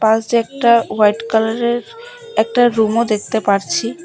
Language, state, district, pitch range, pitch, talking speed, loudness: Bengali, West Bengal, Alipurduar, 220-240 Hz, 230 Hz, 120 wpm, -16 LUFS